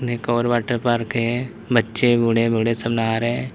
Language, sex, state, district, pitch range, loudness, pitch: Hindi, male, Uttar Pradesh, Lalitpur, 115-120 Hz, -20 LUFS, 120 Hz